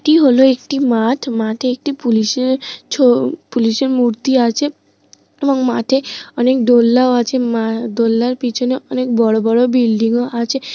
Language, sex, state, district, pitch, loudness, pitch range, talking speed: Bengali, female, West Bengal, North 24 Parganas, 245 Hz, -15 LUFS, 230-260 Hz, 150 wpm